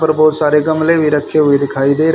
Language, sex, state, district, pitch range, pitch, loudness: Hindi, male, Haryana, Rohtak, 145-155 Hz, 155 Hz, -13 LUFS